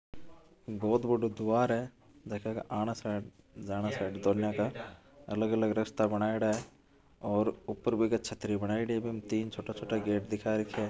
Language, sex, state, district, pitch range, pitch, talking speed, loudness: Marwari, male, Rajasthan, Churu, 105-115 Hz, 110 Hz, 170 wpm, -33 LUFS